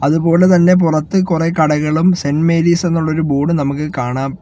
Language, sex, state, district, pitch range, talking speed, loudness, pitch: Malayalam, male, Kerala, Kollam, 150-170 Hz, 135 wpm, -14 LUFS, 160 Hz